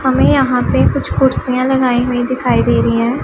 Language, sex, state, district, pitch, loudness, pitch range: Hindi, female, Punjab, Pathankot, 250 Hz, -14 LUFS, 245-260 Hz